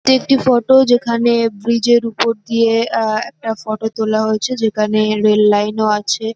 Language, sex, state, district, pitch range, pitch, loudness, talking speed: Bengali, female, West Bengal, North 24 Parganas, 215-235 Hz, 225 Hz, -15 LUFS, 170 wpm